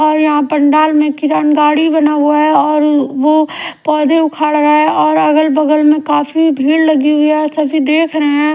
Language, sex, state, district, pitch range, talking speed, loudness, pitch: Hindi, female, Odisha, Sambalpur, 295-310 Hz, 205 wpm, -11 LUFS, 300 Hz